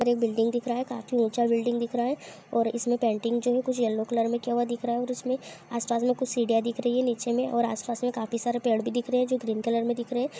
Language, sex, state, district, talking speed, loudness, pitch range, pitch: Hindi, female, Andhra Pradesh, Anantapur, 315 wpm, -27 LUFS, 230-245 Hz, 240 Hz